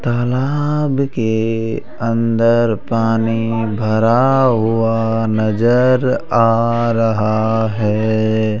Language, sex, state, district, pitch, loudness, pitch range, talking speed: Hindi, male, Rajasthan, Jaipur, 115 Hz, -16 LUFS, 110-120 Hz, 70 wpm